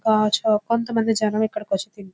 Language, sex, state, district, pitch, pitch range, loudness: Telugu, female, Andhra Pradesh, Visakhapatnam, 215 Hz, 210-225 Hz, -21 LUFS